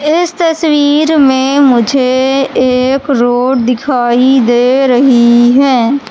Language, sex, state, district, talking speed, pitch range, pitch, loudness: Hindi, female, Madhya Pradesh, Katni, 100 wpm, 245-280 Hz, 260 Hz, -9 LUFS